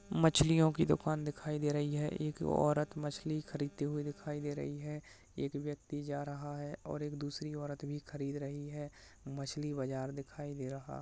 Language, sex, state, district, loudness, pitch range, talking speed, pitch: Hindi, male, Uttarakhand, Tehri Garhwal, -37 LUFS, 145-150 Hz, 195 wpm, 145 Hz